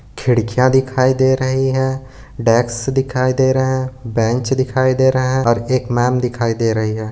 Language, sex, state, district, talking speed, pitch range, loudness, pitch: Hindi, male, Chhattisgarh, Bilaspur, 185 wpm, 120-130 Hz, -16 LUFS, 130 Hz